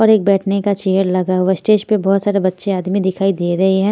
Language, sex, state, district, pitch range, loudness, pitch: Hindi, female, Haryana, Jhajjar, 190-200 Hz, -16 LUFS, 195 Hz